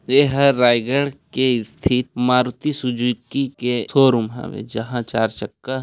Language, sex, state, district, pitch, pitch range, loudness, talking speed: Hindi, male, Chhattisgarh, Raigarh, 125 Hz, 120-135 Hz, -19 LUFS, 135 wpm